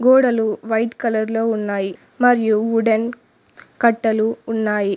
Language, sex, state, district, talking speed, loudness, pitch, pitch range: Telugu, female, Telangana, Mahabubabad, 110 wpm, -19 LUFS, 225 Hz, 220-235 Hz